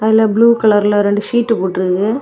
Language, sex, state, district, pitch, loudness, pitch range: Tamil, female, Tamil Nadu, Kanyakumari, 215 Hz, -13 LUFS, 205-230 Hz